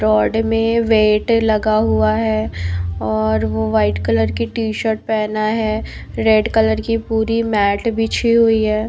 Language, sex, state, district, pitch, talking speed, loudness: Hindi, female, Bihar, Patna, 215 Hz, 155 wpm, -17 LUFS